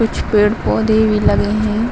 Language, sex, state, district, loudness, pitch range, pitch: Hindi, male, Uttar Pradesh, Varanasi, -15 LUFS, 210-220 Hz, 215 Hz